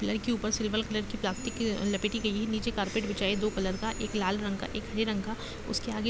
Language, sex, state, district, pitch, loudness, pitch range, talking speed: Hindi, female, Bihar, Gopalganj, 215 Hz, -31 LUFS, 205-225 Hz, 265 wpm